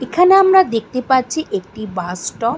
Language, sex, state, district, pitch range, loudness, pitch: Bengali, female, West Bengal, Malda, 220-360 Hz, -15 LUFS, 255 Hz